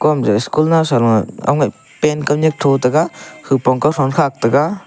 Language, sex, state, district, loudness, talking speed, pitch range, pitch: Wancho, male, Arunachal Pradesh, Longding, -15 LUFS, 110 wpm, 130-155 Hz, 145 Hz